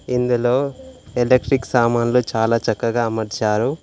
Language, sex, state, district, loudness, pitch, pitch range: Telugu, male, Telangana, Komaram Bheem, -19 LUFS, 120 Hz, 110-125 Hz